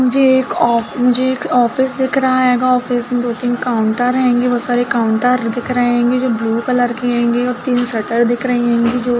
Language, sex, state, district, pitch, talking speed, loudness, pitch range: Hindi, female, Uttar Pradesh, Budaun, 245 Hz, 215 wpm, -15 LUFS, 240-250 Hz